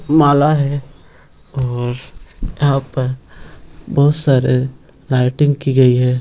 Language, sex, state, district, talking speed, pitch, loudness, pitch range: Hindi, male, Bihar, Jamui, 115 wpm, 135 Hz, -15 LUFS, 130-145 Hz